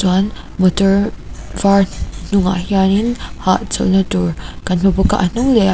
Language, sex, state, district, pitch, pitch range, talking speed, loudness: Mizo, female, Mizoram, Aizawl, 195 Hz, 185-200 Hz, 165 wpm, -15 LUFS